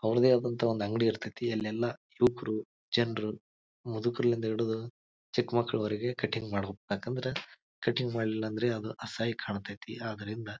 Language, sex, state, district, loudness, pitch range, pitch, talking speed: Kannada, male, Karnataka, Bijapur, -32 LUFS, 110-120 Hz, 115 Hz, 120 wpm